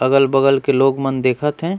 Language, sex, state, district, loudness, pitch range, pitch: Surgujia, male, Chhattisgarh, Sarguja, -16 LUFS, 135-140 Hz, 135 Hz